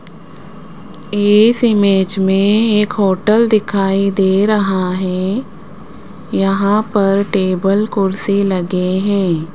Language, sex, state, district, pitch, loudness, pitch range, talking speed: Hindi, female, Rajasthan, Jaipur, 195 Hz, -14 LUFS, 190-210 Hz, 95 wpm